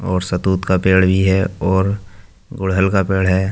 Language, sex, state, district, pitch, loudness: Hindi, male, Uttar Pradesh, Jyotiba Phule Nagar, 95 Hz, -16 LUFS